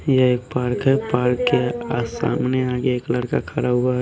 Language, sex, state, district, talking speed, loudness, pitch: Hindi, male, Haryana, Rohtak, 195 wpm, -21 LUFS, 125 Hz